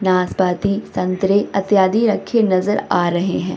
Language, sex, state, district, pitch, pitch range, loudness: Hindi, female, Bihar, Samastipur, 195 Hz, 185-205 Hz, -17 LUFS